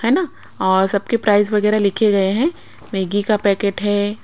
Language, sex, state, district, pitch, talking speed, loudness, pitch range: Hindi, female, Bihar, Patna, 205 Hz, 185 wpm, -17 LUFS, 200-215 Hz